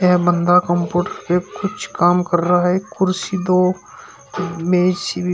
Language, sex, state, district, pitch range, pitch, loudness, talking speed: Hindi, male, Uttar Pradesh, Shamli, 175-185 Hz, 180 Hz, -18 LUFS, 155 wpm